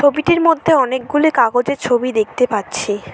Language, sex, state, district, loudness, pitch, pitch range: Bengali, female, West Bengal, Cooch Behar, -16 LUFS, 255 Hz, 230-305 Hz